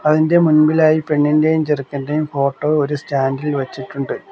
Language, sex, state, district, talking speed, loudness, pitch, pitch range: Malayalam, male, Kerala, Kollam, 125 wpm, -17 LUFS, 150 Hz, 140-155 Hz